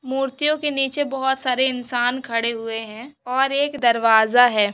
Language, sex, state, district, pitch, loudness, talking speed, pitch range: Hindi, female, Maharashtra, Aurangabad, 255 Hz, -20 LUFS, 165 wpm, 235-270 Hz